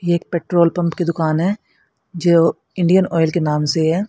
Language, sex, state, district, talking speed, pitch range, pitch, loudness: Hindi, female, Haryana, Rohtak, 205 wpm, 165-175 Hz, 170 Hz, -17 LUFS